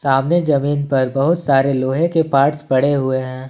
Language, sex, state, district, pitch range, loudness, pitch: Hindi, male, Jharkhand, Ranchi, 135-150 Hz, -17 LUFS, 140 Hz